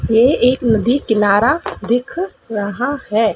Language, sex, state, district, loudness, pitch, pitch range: Hindi, female, Madhya Pradesh, Dhar, -16 LUFS, 230 Hz, 215-255 Hz